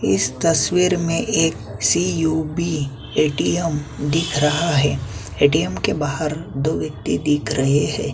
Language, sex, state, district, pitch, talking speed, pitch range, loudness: Hindi, male, Chhattisgarh, Kabirdham, 150 Hz, 125 wpm, 135-165 Hz, -20 LUFS